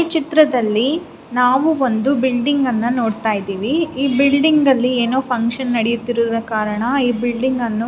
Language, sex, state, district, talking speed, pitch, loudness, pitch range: Kannada, female, Karnataka, Raichur, 130 wpm, 250 Hz, -17 LUFS, 230-275 Hz